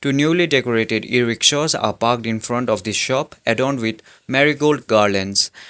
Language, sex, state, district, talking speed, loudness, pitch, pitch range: English, male, Sikkim, Gangtok, 155 wpm, -18 LUFS, 120 Hz, 110-140 Hz